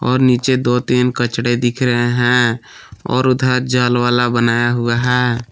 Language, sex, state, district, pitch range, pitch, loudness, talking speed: Hindi, male, Jharkhand, Palamu, 120-125 Hz, 120 Hz, -15 LUFS, 165 wpm